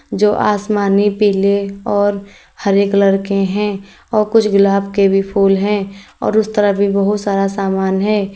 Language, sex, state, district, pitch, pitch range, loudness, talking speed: Hindi, female, Uttar Pradesh, Lalitpur, 200 Hz, 195-205 Hz, -15 LUFS, 165 wpm